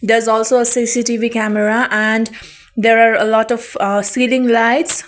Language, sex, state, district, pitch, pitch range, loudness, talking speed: English, female, Sikkim, Gangtok, 230 Hz, 220-240 Hz, -14 LUFS, 165 wpm